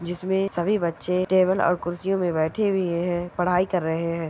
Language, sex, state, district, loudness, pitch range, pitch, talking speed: Hindi, female, Goa, North and South Goa, -24 LUFS, 170-185 Hz, 180 Hz, 210 wpm